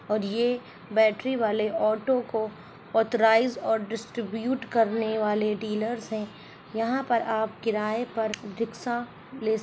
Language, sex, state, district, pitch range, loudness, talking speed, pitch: Hindi, female, Rajasthan, Churu, 215-235 Hz, -27 LUFS, 125 wpm, 225 Hz